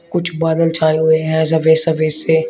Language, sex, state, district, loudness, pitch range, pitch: Hindi, male, Uttar Pradesh, Shamli, -14 LUFS, 160-165 Hz, 160 Hz